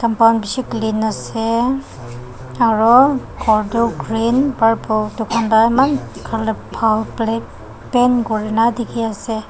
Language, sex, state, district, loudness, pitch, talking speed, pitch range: Nagamese, female, Nagaland, Dimapur, -17 LUFS, 225 Hz, 115 wpm, 220-235 Hz